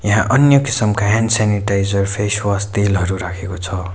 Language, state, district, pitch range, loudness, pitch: Nepali, West Bengal, Darjeeling, 95-105 Hz, -16 LUFS, 100 Hz